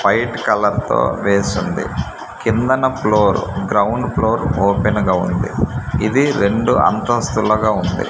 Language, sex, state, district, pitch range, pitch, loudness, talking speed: Telugu, male, Andhra Pradesh, Manyam, 100-120 Hz, 110 Hz, -17 LUFS, 110 wpm